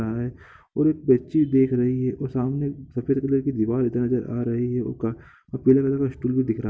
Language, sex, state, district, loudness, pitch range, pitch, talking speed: Hindi, male, Bihar, Gopalganj, -23 LUFS, 120-135 Hz, 125 Hz, 215 wpm